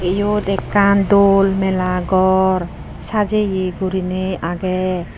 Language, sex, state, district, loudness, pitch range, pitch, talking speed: Chakma, female, Tripura, Unakoti, -17 LUFS, 185-200 Hz, 190 Hz, 90 wpm